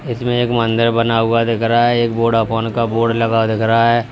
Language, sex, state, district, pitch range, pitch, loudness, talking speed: Hindi, male, Uttar Pradesh, Lalitpur, 115-120 Hz, 115 Hz, -15 LUFS, 250 wpm